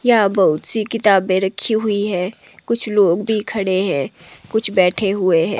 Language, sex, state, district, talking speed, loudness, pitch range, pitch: Hindi, female, Himachal Pradesh, Shimla, 170 wpm, -17 LUFS, 190-220 Hz, 200 Hz